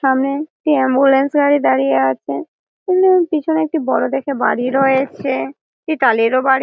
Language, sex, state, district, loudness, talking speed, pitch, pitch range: Bengali, female, West Bengal, Malda, -16 LUFS, 155 wpm, 275 Hz, 265-310 Hz